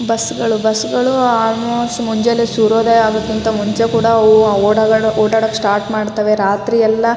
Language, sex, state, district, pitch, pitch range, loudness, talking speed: Kannada, female, Karnataka, Raichur, 220 Hz, 215-230 Hz, -14 LUFS, 125 wpm